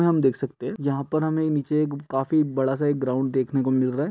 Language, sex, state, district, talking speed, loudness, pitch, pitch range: Hindi, male, Uttar Pradesh, Etah, 275 wpm, -24 LUFS, 140 Hz, 135-150 Hz